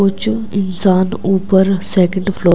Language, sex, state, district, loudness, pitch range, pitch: Hindi, male, Uttar Pradesh, Saharanpur, -15 LUFS, 185-195 Hz, 195 Hz